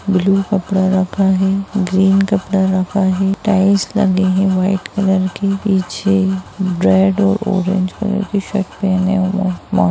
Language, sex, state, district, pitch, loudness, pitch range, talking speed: Hindi, female, Bihar, Darbhanga, 190 Hz, -15 LUFS, 185-195 Hz, 140 wpm